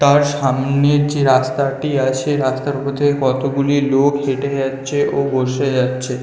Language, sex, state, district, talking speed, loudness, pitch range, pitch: Bengali, male, West Bengal, North 24 Parganas, 155 wpm, -17 LUFS, 130-145 Hz, 140 Hz